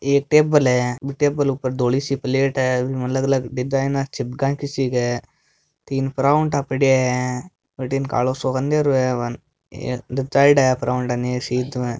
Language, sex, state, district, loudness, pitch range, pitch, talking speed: Marwari, male, Rajasthan, Nagaur, -20 LUFS, 125-135 Hz, 130 Hz, 170 wpm